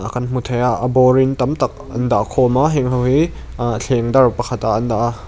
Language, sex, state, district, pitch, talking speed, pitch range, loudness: Mizo, male, Mizoram, Aizawl, 125 Hz, 270 wpm, 120-130 Hz, -17 LUFS